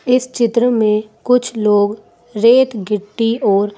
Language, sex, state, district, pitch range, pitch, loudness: Hindi, female, Madhya Pradesh, Bhopal, 210-245 Hz, 225 Hz, -15 LUFS